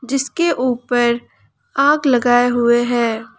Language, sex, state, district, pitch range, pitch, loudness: Hindi, female, Jharkhand, Palamu, 240-275 Hz, 245 Hz, -16 LUFS